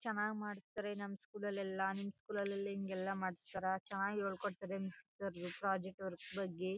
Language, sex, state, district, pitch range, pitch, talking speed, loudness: Kannada, female, Karnataka, Chamarajanagar, 190-200 Hz, 195 Hz, 170 wpm, -42 LUFS